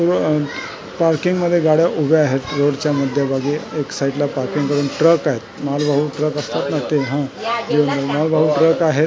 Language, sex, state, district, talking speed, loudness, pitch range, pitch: Marathi, male, Maharashtra, Mumbai Suburban, 160 wpm, -18 LUFS, 140-160 Hz, 150 Hz